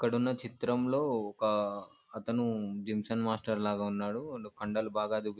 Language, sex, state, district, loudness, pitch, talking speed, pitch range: Telugu, male, Andhra Pradesh, Anantapur, -34 LUFS, 110 Hz, 120 wpm, 105-115 Hz